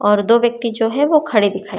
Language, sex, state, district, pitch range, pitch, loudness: Hindi, female, Maharashtra, Chandrapur, 205-240 Hz, 225 Hz, -15 LUFS